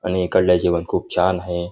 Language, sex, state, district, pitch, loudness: Marathi, male, Maharashtra, Nagpur, 90 Hz, -19 LUFS